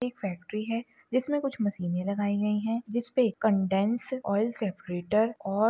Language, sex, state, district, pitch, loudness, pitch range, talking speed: Hindi, female, Maharashtra, Solapur, 215 Hz, -29 LUFS, 200-235 Hz, 160 wpm